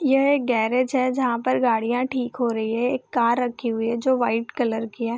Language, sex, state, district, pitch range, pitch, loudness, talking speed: Hindi, female, Bihar, Gopalganj, 230-255 Hz, 245 Hz, -22 LUFS, 245 wpm